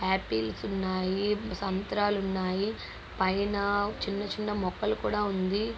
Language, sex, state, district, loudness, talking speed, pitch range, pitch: Telugu, female, Andhra Pradesh, Guntur, -30 LUFS, 85 wpm, 190-205 Hz, 200 Hz